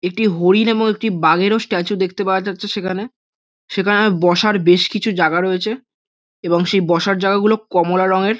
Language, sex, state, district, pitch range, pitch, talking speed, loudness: Bengali, male, West Bengal, North 24 Parganas, 180-215 Hz, 195 Hz, 155 wpm, -16 LUFS